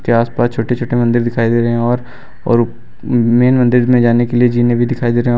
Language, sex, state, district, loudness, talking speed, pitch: Hindi, male, Uttar Pradesh, Lucknow, -14 LUFS, 255 wpm, 120 Hz